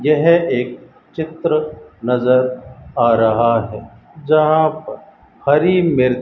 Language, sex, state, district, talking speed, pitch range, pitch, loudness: Hindi, male, Rajasthan, Bikaner, 115 wpm, 120-155 Hz, 130 Hz, -16 LUFS